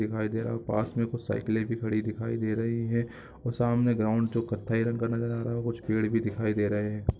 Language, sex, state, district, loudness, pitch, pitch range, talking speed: Hindi, male, Chhattisgarh, Korba, -29 LUFS, 115 Hz, 110-115 Hz, 250 wpm